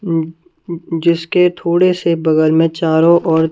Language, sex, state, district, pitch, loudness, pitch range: Hindi, female, Punjab, Kapurthala, 165 Hz, -14 LUFS, 160-175 Hz